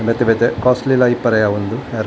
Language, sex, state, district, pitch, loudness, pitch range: Tulu, male, Karnataka, Dakshina Kannada, 115 Hz, -15 LUFS, 110-125 Hz